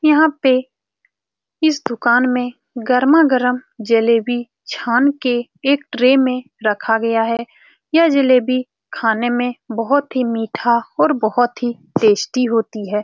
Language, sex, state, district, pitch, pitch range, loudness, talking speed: Hindi, female, Bihar, Saran, 245 Hz, 230-260 Hz, -17 LUFS, 130 wpm